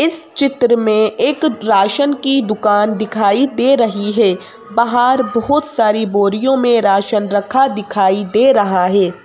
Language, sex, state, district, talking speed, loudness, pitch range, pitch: Hindi, female, Madhya Pradesh, Bhopal, 145 wpm, -14 LUFS, 205-265 Hz, 220 Hz